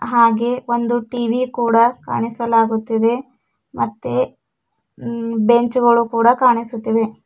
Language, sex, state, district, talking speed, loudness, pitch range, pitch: Kannada, female, Karnataka, Bidar, 85 wpm, -17 LUFS, 230-240 Hz, 235 Hz